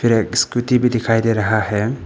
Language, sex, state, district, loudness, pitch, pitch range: Hindi, male, Arunachal Pradesh, Papum Pare, -17 LUFS, 115 Hz, 110-120 Hz